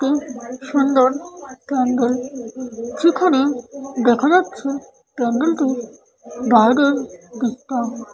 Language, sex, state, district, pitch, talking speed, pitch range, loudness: Bengali, female, West Bengal, Paschim Medinipur, 260 Hz, 75 wpm, 245-275 Hz, -18 LUFS